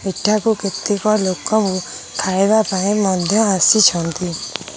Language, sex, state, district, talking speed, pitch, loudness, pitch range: Odia, female, Odisha, Khordha, 90 wpm, 200 Hz, -16 LUFS, 185-215 Hz